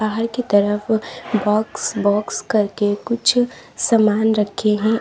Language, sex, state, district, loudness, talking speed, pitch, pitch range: Hindi, female, Uttar Pradesh, Lalitpur, -19 LUFS, 120 wpm, 215 Hz, 210-225 Hz